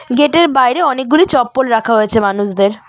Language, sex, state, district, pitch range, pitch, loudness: Bengali, female, West Bengal, Cooch Behar, 215-280 Hz, 245 Hz, -12 LUFS